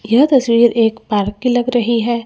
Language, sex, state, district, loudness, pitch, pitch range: Hindi, female, Chandigarh, Chandigarh, -14 LUFS, 235 Hz, 225-245 Hz